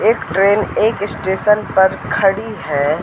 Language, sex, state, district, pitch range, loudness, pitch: Hindi, male, Madhya Pradesh, Katni, 190-215 Hz, -16 LUFS, 195 Hz